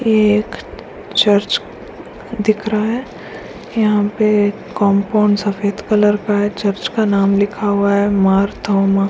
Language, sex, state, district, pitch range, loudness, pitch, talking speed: Hindi, female, Bihar, Kishanganj, 200-215 Hz, -16 LUFS, 205 Hz, 125 wpm